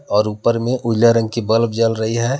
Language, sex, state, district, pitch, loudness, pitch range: Hindi, male, Jharkhand, Palamu, 115 Hz, -17 LUFS, 110-115 Hz